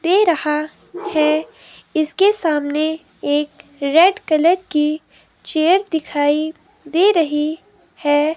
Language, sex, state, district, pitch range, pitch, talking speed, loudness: Hindi, female, Himachal Pradesh, Shimla, 300-360 Hz, 315 Hz, 100 wpm, -18 LUFS